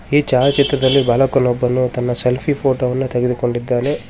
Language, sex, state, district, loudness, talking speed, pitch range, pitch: Kannada, male, Karnataka, Shimoga, -16 LUFS, 115 wpm, 125-140 Hz, 125 Hz